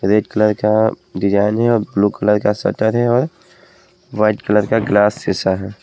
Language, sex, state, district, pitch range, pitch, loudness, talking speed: Hindi, male, Haryana, Jhajjar, 105-120 Hz, 105 Hz, -16 LUFS, 185 wpm